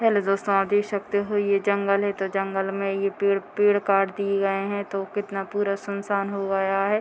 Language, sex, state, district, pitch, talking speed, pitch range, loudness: Hindi, female, Bihar, Muzaffarpur, 200 Hz, 225 wpm, 195-205 Hz, -24 LUFS